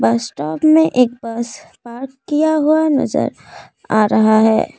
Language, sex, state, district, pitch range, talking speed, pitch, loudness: Hindi, female, Assam, Kamrup Metropolitan, 220-305 Hz, 150 wpm, 240 Hz, -15 LUFS